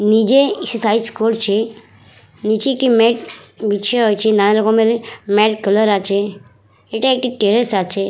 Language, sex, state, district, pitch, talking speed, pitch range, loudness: Bengali, female, West Bengal, Purulia, 215 Hz, 135 wpm, 200-230 Hz, -16 LUFS